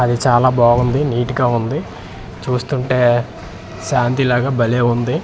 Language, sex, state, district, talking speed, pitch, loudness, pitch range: Telugu, male, Andhra Pradesh, Manyam, 125 wpm, 120 Hz, -16 LUFS, 120-125 Hz